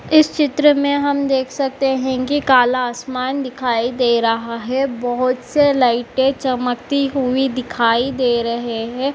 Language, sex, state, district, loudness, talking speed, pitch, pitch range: Hindi, female, Uttar Pradesh, Etah, -17 LUFS, 150 wpm, 255 Hz, 245-275 Hz